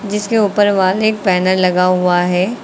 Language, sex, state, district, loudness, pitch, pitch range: Hindi, female, Uttar Pradesh, Lucknow, -14 LUFS, 185 Hz, 180-210 Hz